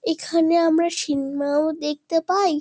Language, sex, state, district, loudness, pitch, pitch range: Bengali, female, West Bengal, Kolkata, -21 LUFS, 325 Hz, 295-340 Hz